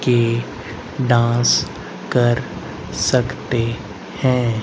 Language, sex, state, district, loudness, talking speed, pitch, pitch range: Hindi, male, Haryana, Rohtak, -19 LUFS, 65 wpm, 120 Hz, 115-125 Hz